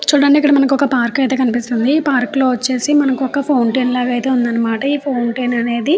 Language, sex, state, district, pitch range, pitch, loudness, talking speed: Telugu, female, Andhra Pradesh, Chittoor, 240-280 Hz, 260 Hz, -15 LUFS, 210 wpm